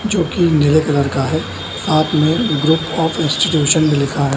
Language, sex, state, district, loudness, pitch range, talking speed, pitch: Hindi, male, Bihar, Samastipur, -15 LUFS, 145-160 Hz, 190 wpm, 155 Hz